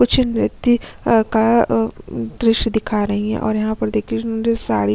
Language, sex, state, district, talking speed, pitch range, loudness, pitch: Hindi, female, Chhattisgarh, Kabirdham, 170 wpm, 205-230 Hz, -18 LUFS, 220 Hz